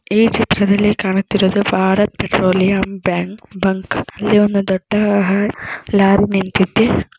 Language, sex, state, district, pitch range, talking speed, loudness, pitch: Kannada, female, Karnataka, Belgaum, 190-205 Hz, 100 wpm, -15 LUFS, 195 Hz